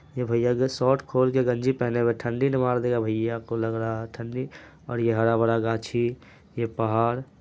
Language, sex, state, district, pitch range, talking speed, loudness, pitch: Hindi, male, Bihar, Araria, 115-125 Hz, 210 wpm, -25 LUFS, 120 Hz